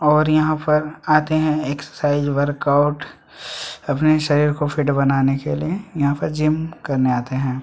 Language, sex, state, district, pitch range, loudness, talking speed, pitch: Hindi, male, Chhattisgarh, Sukma, 140-155 Hz, -19 LUFS, 155 wpm, 150 Hz